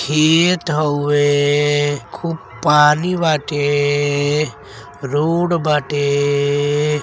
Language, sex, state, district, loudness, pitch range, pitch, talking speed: Bhojpuri, male, Uttar Pradesh, Deoria, -16 LUFS, 145-155 Hz, 145 Hz, 60 wpm